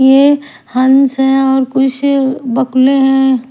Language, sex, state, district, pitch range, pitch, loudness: Hindi, female, Bihar, Katihar, 260-270 Hz, 265 Hz, -11 LUFS